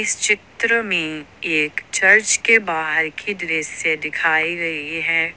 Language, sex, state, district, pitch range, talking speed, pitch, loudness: Hindi, female, Jharkhand, Ranchi, 155-175 Hz, 135 wpm, 165 Hz, -18 LUFS